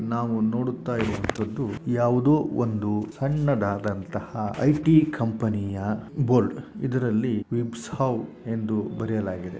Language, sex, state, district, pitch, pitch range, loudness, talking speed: Kannada, male, Karnataka, Shimoga, 115 Hz, 105-125 Hz, -25 LUFS, 85 wpm